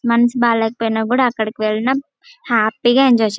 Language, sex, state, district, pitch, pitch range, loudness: Telugu, female, Andhra Pradesh, Chittoor, 230 Hz, 220-245 Hz, -16 LUFS